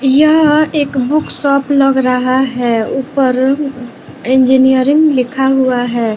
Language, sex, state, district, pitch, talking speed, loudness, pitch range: Hindi, female, Bihar, West Champaran, 265 Hz, 115 wpm, -12 LUFS, 255-280 Hz